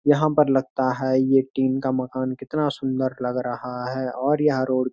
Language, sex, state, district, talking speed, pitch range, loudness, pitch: Hindi, male, Uttarakhand, Uttarkashi, 205 wpm, 130-135 Hz, -23 LUFS, 130 Hz